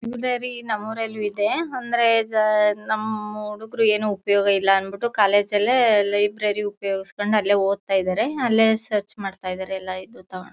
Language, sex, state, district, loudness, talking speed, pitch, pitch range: Kannada, female, Karnataka, Mysore, -21 LUFS, 130 wpm, 210 Hz, 200-225 Hz